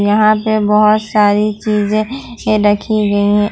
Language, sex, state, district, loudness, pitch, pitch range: Hindi, female, Jharkhand, Ranchi, -13 LUFS, 210 Hz, 205-215 Hz